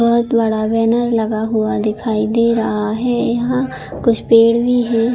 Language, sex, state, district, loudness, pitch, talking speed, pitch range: Hindi, female, Chhattisgarh, Bilaspur, -16 LUFS, 230 Hz, 165 wpm, 220-235 Hz